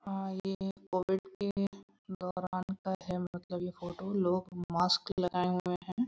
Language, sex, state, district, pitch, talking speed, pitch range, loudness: Hindi, female, Bihar, Muzaffarpur, 185 Hz, 150 wpm, 180-195 Hz, -35 LUFS